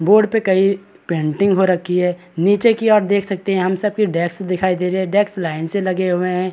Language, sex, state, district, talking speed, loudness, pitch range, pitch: Hindi, male, Bihar, Kishanganj, 250 wpm, -17 LUFS, 180-200 Hz, 190 Hz